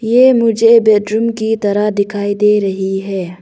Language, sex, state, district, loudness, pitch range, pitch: Hindi, female, Arunachal Pradesh, Longding, -13 LUFS, 200-225 Hz, 210 Hz